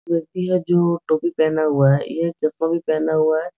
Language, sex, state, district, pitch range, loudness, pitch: Hindi, male, Bihar, Supaul, 155-170 Hz, -19 LUFS, 160 Hz